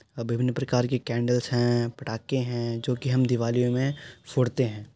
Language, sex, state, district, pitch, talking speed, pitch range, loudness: Hindi, male, Uttar Pradesh, Jyotiba Phule Nagar, 125 Hz, 180 wpm, 120-130 Hz, -26 LUFS